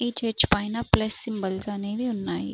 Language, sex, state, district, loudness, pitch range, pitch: Telugu, female, Andhra Pradesh, Srikakulam, -26 LUFS, 205-230 Hz, 215 Hz